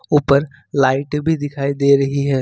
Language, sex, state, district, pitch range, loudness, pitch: Hindi, male, Jharkhand, Ranchi, 140-145 Hz, -17 LUFS, 140 Hz